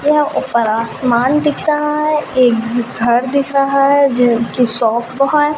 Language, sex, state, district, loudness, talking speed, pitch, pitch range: Hindi, female, Uttar Pradesh, Ghazipur, -14 LUFS, 150 wpm, 260 Hz, 235-295 Hz